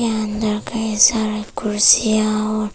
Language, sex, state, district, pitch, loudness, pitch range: Hindi, female, Arunachal Pradesh, Papum Pare, 215 Hz, -17 LUFS, 215-220 Hz